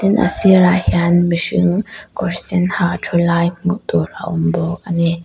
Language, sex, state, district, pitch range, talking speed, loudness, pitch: Mizo, female, Mizoram, Aizawl, 170-180 Hz, 195 wpm, -16 LUFS, 175 Hz